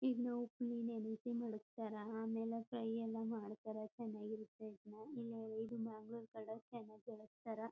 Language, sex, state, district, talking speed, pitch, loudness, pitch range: Kannada, female, Karnataka, Chamarajanagar, 125 wpm, 225 Hz, -47 LUFS, 220-235 Hz